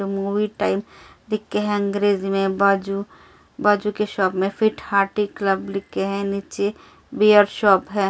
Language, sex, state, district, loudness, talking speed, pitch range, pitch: Hindi, female, Delhi, New Delhi, -21 LUFS, 150 wpm, 195-210 Hz, 200 Hz